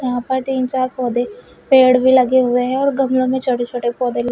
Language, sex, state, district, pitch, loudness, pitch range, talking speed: Hindi, female, Uttar Pradesh, Shamli, 255 Hz, -16 LUFS, 245-260 Hz, 235 wpm